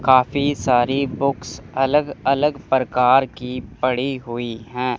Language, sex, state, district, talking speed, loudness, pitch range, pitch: Hindi, male, Chandigarh, Chandigarh, 120 wpm, -20 LUFS, 125-140 Hz, 130 Hz